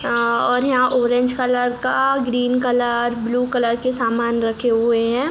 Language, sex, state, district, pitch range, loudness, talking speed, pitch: Hindi, female, Uttar Pradesh, Hamirpur, 235-250 Hz, -19 LUFS, 170 wpm, 245 Hz